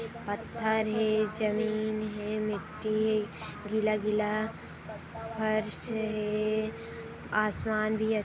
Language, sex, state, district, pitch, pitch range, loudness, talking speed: Hindi, female, Chhattisgarh, Kabirdham, 215 Hz, 215-220 Hz, -31 LUFS, 85 wpm